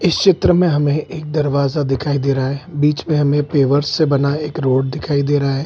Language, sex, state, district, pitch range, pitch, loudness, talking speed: Hindi, male, Bihar, Gaya, 140-155 Hz, 145 Hz, -17 LUFS, 220 wpm